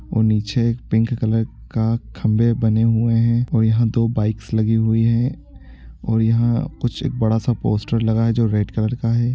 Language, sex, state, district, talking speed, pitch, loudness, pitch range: Hindi, male, Bihar, East Champaran, 200 wpm, 115 Hz, -19 LUFS, 110-115 Hz